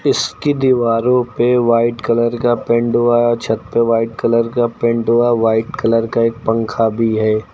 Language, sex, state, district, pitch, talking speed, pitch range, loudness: Hindi, male, Uttar Pradesh, Lucknow, 115 Hz, 190 wpm, 115-120 Hz, -15 LUFS